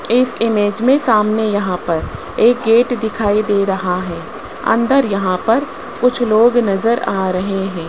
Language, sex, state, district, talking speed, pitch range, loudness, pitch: Hindi, male, Rajasthan, Jaipur, 160 wpm, 195-240 Hz, -15 LUFS, 220 Hz